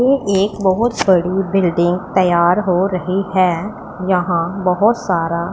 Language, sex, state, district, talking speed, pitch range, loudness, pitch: Hindi, female, Punjab, Pathankot, 130 wpm, 175-195 Hz, -16 LUFS, 185 Hz